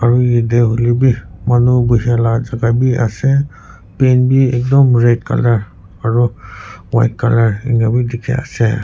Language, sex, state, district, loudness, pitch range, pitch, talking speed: Nagamese, male, Nagaland, Kohima, -14 LUFS, 115-125 Hz, 120 Hz, 140 wpm